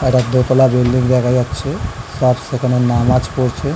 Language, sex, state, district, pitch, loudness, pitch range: Bengali, male, West Bengal, Dakshin Dinajpur, 125 Hz, -15 LUFS, 125-130 Hz